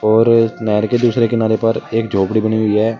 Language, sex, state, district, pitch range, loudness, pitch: Hindi, male, Uttar Pradesh, Shamli, 110-115 Hz, -15 LUFS, 110 Hz